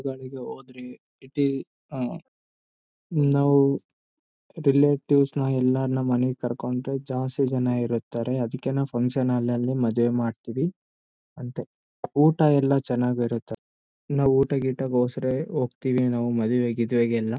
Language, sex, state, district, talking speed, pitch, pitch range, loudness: Kannada, male, Karnataka, Bellary, 115 wpm, 130 Hz, 120-135 Hz, -24 LUFS